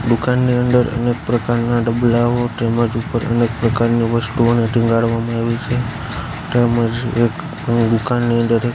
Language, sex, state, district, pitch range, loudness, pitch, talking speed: Gujarati, male, Gujarat, Gandhinagar, 115-120 Hz, -17 LUFS, 120 Hz, 145 wpm